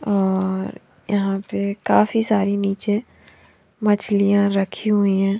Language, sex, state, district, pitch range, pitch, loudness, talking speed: Hindi, female, Bihar, Patna, 195-210 Hz, 200 Hz, -20 LUFS, 120 wpm